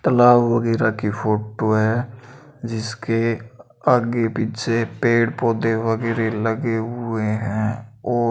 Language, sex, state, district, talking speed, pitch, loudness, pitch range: Hindi, male, Rajasthan, Bikaner, 115 wpm, 115 Hz, -20 LUFS, 110-120 Hz